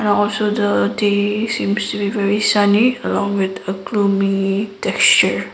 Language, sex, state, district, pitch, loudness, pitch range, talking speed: English, female, Sikkim, Gangtok, 205 Hz, -17 LUFS, 195-210 Hz, 140 wpm